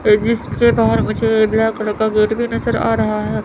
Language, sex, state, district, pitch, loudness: Hindi, female, Chandigarh, Chandigarh, 210 Hz, -16 LUFS